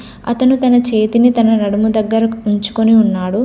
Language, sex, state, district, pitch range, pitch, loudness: Telugu, female, Telangana, Komaram Bheem, 215-240 Hz, 225 Hz, -13 LUFS